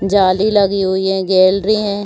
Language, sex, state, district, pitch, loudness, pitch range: Hindi, female, Bihar, Saharsa, 195 Hz, -14 LUFS, 190-205 Hz